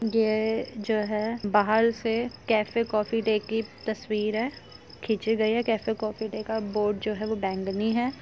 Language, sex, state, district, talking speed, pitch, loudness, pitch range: Hindi, female, Uttar Pradesh, Jyotiba Phule Nagar, 175 wpm, 220 Hz, -27 LUFS, 215-225 Hz